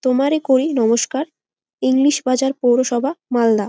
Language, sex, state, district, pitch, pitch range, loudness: Bengali, female, West Bengal, Malda, 260 Hz, 245-280 Hz, -17 LUFS